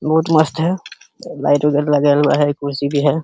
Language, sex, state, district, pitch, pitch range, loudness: Hindi, male, Uttar Pradesh, Hamirpur, 145 Hz, 145-160 Hz, -16 LUFS